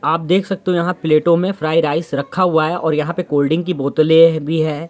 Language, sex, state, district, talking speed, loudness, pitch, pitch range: Hindi, male, Uttar Pradesh, Jyotiba Phule Nagar, 230 wpm, -16 LUFS, 165 Hz, 155-175 Hz